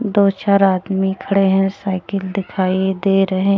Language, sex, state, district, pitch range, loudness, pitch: Hindi, female, Jharkhand, Deoghar, 190-200 Hz, -17 LUFS, 195 Hz